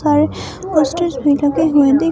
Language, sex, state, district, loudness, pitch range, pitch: Hindi, female, Himachal Pradesh, Shimla, -15 LUFS, 285-315 Hz, 295 Hz